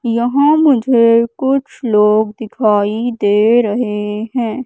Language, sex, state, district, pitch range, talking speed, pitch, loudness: Hindi, female, Madhya Pradesh, Katni, 215-255 Hz, 105 wpm, 230 Hz, -14 LUFS